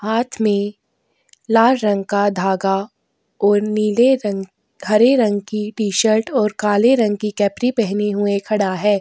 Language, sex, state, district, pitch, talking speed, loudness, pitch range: Hindi, female, Chhattisgarh, Korba, 210 Hz, 160 wpm, -17 LUFS, 205-225 Hz